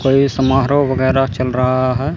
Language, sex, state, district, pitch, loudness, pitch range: Hindi, male, Chandigarh, Chandigarh, 135 Hz, -15 LUFS, 130-135 Hz